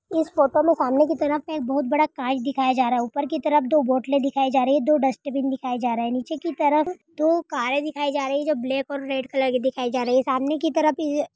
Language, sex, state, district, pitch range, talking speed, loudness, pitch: Hindi, female, Uttar Pradesh, Budaun, 265-305 Hz, 280 wpm, -23 LUFS, 285 Hz